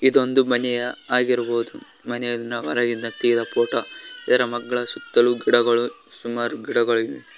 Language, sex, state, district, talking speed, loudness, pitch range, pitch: Kannada, male, Karnataka, Koppal, 105 wpm, -21 LUFS, 120-125 Hz, 120 Hz